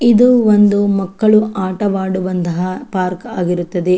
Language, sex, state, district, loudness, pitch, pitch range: Kannada, female, Karnataka, Chamarajanagar, -15 LUFS, 195 Hz, 185-215 Hz